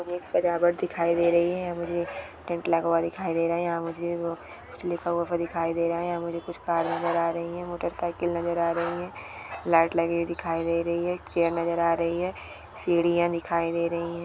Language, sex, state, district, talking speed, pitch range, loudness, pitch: Hindi, female, Chhattisgarh, Jashpur, 225 wpm, 170-175 Hz, -27 LUFS, 170 Hz